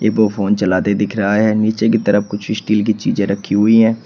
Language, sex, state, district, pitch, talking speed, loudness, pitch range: Hindi, male, Uttar Pradesh, Shamli, 105 Hz, 250 wpm, -15 LUFS, 100-110 Hz